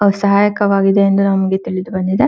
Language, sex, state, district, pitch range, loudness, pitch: Kannada, female, Karnataka, Shimoga, 190-205 Hz, -14 LUFS, 195 Hz